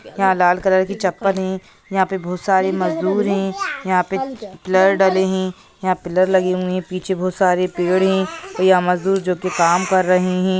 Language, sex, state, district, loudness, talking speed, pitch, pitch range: Hindi, female, Bihar, Gopalganj, -18 LUFS, 200 wpm, 185 Hz, 185-190 Hz